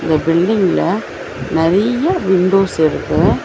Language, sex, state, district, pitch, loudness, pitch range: Tamil, female, Tamil Nadu, Chennai, 185 Hz, -15 LUFS, 165-200 Hz